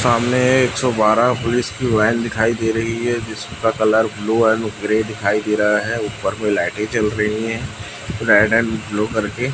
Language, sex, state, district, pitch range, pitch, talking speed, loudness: Hindi, male, Chhattisgarh, Raipur, 105-115 Hz, 110 Hz, 190 wpm, -18 LUFS